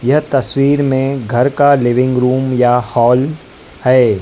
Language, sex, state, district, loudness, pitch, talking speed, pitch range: Hindi, female, Madhya Pradesh, Dhar, -13 LUFS, 130 Hz, 140 wpm, 125-140 Hz